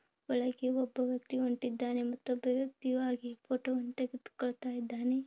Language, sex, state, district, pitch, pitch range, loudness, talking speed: Kannada, female, Karnataka, Bellary, 250 Hz, 245-255 Hz, -36 LUFS, 100 wpm